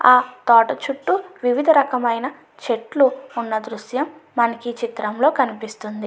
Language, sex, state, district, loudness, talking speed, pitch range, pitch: Telugu, female, Andhra Pradesh, Anantapur, -20 LUFS, 120 wpm, 230-275 Hz, 250 Hz